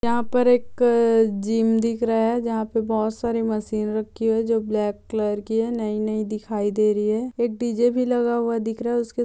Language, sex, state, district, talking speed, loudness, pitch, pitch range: Hindi, female, Chhattisgarh, Bastar, 240 wpm, -22 LUFS, 225 Hz, 215-235 Hz